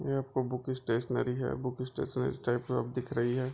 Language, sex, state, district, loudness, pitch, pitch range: Hindi, male, Bihar, Bhagalpur, -33 LUFS, 125 Hz, 125-130 Hz